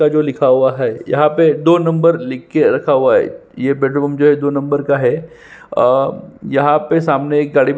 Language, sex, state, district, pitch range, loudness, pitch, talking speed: Hindi, male, Chhattisgarh, Sukma, 140-155 Hz, -14 LUFS, 145 Hz, 230 wpm